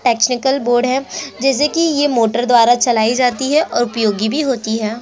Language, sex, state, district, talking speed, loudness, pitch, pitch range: Hindi, female, Chhattisgarh, Korba, 190 wpm, -15 LUFS, 245 Hz, 230-270 Hz